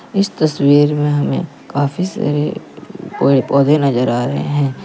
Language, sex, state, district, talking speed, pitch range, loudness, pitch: Hindi, male, Uttar Pradesh, Lalitpur, 150 wpm, 120-150 Hz, -15 LUFS, 145 Hz